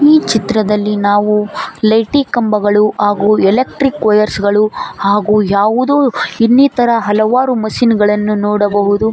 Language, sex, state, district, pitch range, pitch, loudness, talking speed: Kannada, female, Karnataka, Koppal, 205-235 Hz, 215 Hz, -12 LUFS, 100 wpm